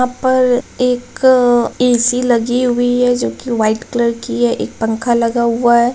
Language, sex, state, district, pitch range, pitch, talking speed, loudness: Hindi, female, Bihar, Jamui, 235-250 Hz, 240 Hz, 180 wpm, -14 LUFS